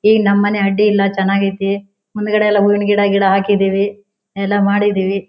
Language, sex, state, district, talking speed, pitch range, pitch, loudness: Kannada, female, Karnataka, Shimoga, 170 wpm, 195-205 Hz, 200 Hz, -15 LUFS